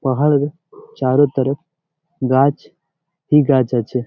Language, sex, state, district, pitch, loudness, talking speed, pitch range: Bengali, male, West Bengal, Jalpaiguri, 145 Hz, -17 LUFS, 105 wpm, 130-170 Hz